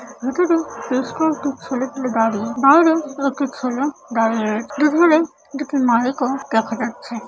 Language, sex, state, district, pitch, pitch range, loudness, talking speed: Bengali, female, West Bengal, Paschim Medinipur, 270 Hz, 235-290 Hz, -19 LUFS, 115 wpm